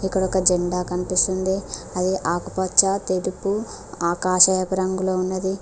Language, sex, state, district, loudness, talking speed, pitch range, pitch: Telugu, female, Telangana, Mahabubabad, -20 LUFS, 95 wpm, 180-190 Hz, 185 Hz